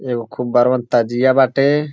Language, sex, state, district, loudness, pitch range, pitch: Bhojpuri, male, Uttar Pradesh, Deoria, -16 LUFS, 120-135 Hz, 125 Hz